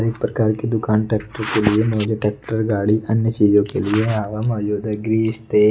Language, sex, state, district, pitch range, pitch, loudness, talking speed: Hindi, male, Odisha, Nuapada, 105-110 Hz, 110 Hz, -19 LUFS, 200 wpm